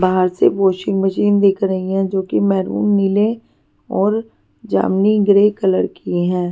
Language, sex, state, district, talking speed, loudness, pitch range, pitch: Hindi, female, Punjab, Pathankot, 155 wpm, -16 LUFS, 190-205 Hz, 195 Hz